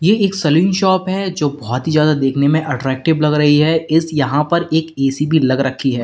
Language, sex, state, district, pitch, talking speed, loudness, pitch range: Hindi, male, Uttar Pradesh, Lalitpur, 150 Hz, 230 wpm, -15 LUFS, 135-160 Hz